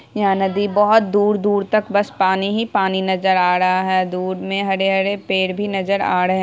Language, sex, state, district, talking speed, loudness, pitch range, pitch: Hindi, female, Bihar, Saharsa, 205 wpm, -18 LUFS, 190-205 Hz, 195 Hz